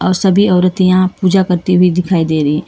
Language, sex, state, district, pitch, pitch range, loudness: Hindi, female, Karnataka, Bangalore, 185 Hz, 180-185 Hz, -12 LUFS